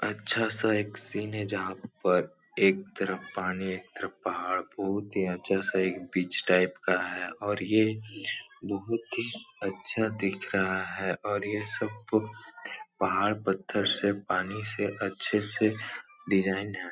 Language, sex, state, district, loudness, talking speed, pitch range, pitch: Hindi, male, Uttar Pradesh, Etah, -30 LUFS, 155 wpm, 95-110 Hz, 100 Hz